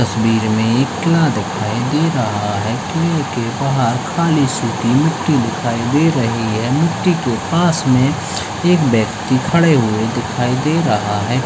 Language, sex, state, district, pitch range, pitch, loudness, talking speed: Hindi, male, Uttar Pradesh, Deoria, 115-155 Hz, 125 Hz, -16 LUFS, 155 wpm